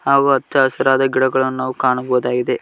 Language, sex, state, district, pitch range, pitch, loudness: Kannada, male, Karnataka, Koppal, 130-135 Hz, 130 Hz, -16 LUFS